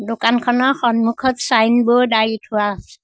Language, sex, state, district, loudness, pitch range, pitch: Assamese, female, Assam, Sonitpur, -16 LUFS, 220-245 Hz, 235 Hz